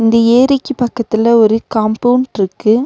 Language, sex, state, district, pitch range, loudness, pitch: Tamil, female, Tamil Nadu, Nilgiris, 220-245 Hz, -12 LUFS, 230 Hz